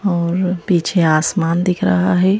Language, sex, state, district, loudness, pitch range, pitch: Hindi, female, Madhya Pradesh, Bhopal, -16 LUFS, 170-185 Hz, 180 Hz